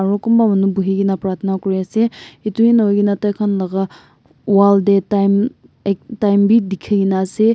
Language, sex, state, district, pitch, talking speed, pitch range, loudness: Nagamese, male, Nagaland, Kohima, 200 Hz, 145 wpm, 195-210 Hz, -16 LUFS